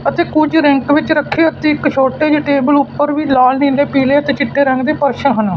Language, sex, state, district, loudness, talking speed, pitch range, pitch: Punjabi, male, Punjab, Fazilka, -13 LUFS, 225 wpm, 275-300 Hz, 285 Hz